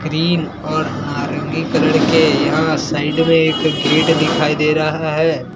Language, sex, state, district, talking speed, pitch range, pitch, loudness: Hindi, male, Bihar, Katihar, 150 wpm, 150-160 Hz, 155 Hz, -15 LUFS